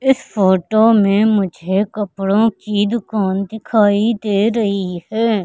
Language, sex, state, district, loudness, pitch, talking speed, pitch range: Hindi, female, Madhya Pradesh, Katni, -16 LUFS, 210 Hz, 120 wpm, 195-220 Hz